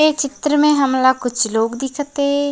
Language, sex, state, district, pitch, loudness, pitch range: Chhattisgarhi, female, Chhattisgarh, Raigarh, 280 Hz, -17 LUFS, 260-290 Hz